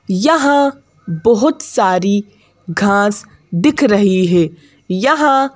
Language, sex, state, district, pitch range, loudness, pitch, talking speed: Hindi, female, Madhya Pradesh, Bhopal, 180-280 Hz, -14 LUFS, 205 Hz, 85 wpm